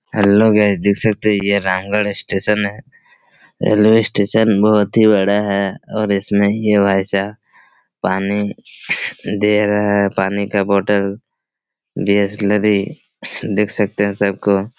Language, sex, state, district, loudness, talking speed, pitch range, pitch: Hindi, male, Chhattisgarh, Raigarh, -16 LUFS, 135 wpm, 100-105 Hz, 100 Hz